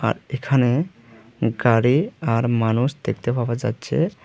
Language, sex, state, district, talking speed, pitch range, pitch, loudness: Bengali, male, Tripura, Unakoti, 100 wpm, 115-140 Hz, 120 Hz, -21 LUFS